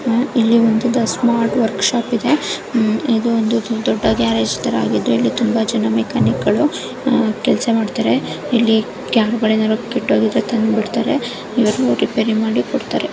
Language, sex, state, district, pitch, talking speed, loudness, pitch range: Kannada, male, Karnataka, Bijapur, 230 Hz, 95 wpm, -17 LUFS, 220-235 Hz